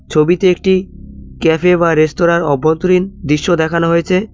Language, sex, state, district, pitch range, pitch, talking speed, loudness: Bengali, male, West Bengal, Cooch Behar, 155-180 Hz, 170 Hz, 125 wpm, -13 LUFS